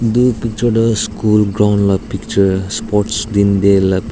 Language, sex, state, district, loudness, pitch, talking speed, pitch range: Nagamese, male, Nagaland, Dimapur, -14 LUFS, 105 Hz, 160 wpm, 100-115 Hz